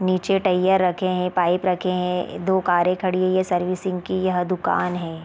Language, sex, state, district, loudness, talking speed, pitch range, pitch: Hindi, female, Chhattisgarh, Raigarh, -21 LUFS, 195 wpm, 180-185 Hz, 185 Hz